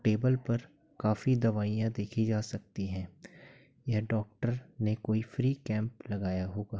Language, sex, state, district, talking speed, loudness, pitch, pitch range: Hindi, male, Uttar Pradesh, Jyotiba Phule Nagar, 140 wpm, -33 LUFS, 110 Hz, 105-130 Hz